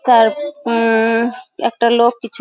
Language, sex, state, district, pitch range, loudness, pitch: Bengali, female, West Bengal, Jhargram, 230-255 Hz, -15 LUFS, 235 Hz